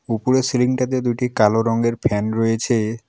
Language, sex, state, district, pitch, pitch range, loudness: Bengali, male, West Bengal, Alipurduar, 115 Hz, 115-125 Hz, -19 LUFS